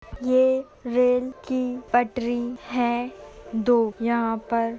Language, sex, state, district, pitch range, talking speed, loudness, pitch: Hindi, female, Uttar Pradesh, Etah, 230-255 Hz, 115 wpm, -24 LUFS, 245 Hz